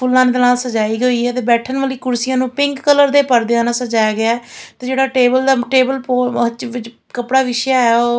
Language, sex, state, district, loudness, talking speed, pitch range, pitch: Punjabi, female, Punjab, Fazilka, -15 LUFS, 205 wpm, 240-260 Hz, 250 Hz